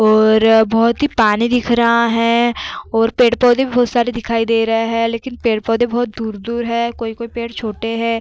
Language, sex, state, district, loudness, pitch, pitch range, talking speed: Hindi, female, Uttar Pradesh, Varanasi, -16 LUFS, 230 Hz, 225-240 Hz, 180 wpm